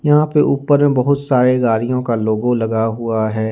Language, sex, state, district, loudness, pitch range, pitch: Hindi, male, Jharkhand, Ranchi, -16 LUFS, 110-140 Hz, 125 Hz